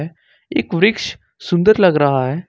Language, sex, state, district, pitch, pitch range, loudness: Hindi, male, Jharkhand, Ranchi, 170 Hz, 145-185 Hz, -16 LUFS